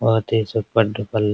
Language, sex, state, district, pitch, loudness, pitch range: Hindi, male, Bihar, Araria, 110 Hz, -20 LUFS, 105-115 Hz